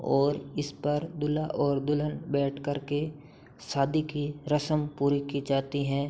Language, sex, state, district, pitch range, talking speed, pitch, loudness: Hindi, male, Uttar Pradesh, Hamirpur, 140-150 Hz, 145 wpm, 145 Hz, -29 LUFS